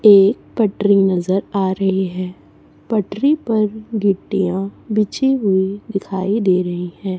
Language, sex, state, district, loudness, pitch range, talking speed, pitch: Hindi, female, Chhattisgarh, Raipur, -18 LUFS, 190-215 Hz, 125 wpm, 195 Hz